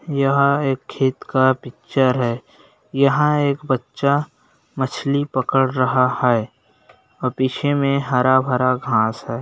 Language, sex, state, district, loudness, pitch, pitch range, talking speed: Hindi, male, Bihar, Bhagalpur, -19 LUFS, 130 Hz, 125-140 Hz, 120 wpm